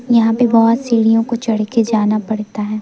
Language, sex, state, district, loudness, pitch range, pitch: Hindi, female, Madhya Pradesh, Umaria, -15 LUFS, 215-230 Hz, 225 Hz